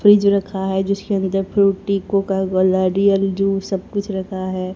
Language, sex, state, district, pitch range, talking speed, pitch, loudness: Hindi, female, Haryana, Rohtak, 190-200 Hz, 175 wpm, 195 Hz, -18 LUFS